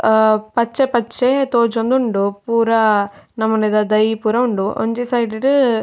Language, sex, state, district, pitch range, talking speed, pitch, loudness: Tulu, female, Karnataka, Dakshina Kannada, 215-240 Hz, 125 wpm, 225 Hz, -16 LUFS